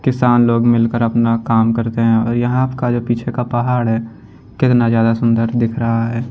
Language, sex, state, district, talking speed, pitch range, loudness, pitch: Hindi, male, Punjab, Kapurthala, 200 wpm, 115-120 Hz, -15 LUFS, 115 Hz